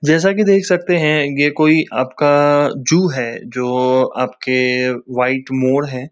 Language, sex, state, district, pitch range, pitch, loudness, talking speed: Hindi, male, West Bengal, Kolkata, 125-155 Hz, 140 Hz, -15 LUFS, 145 wpm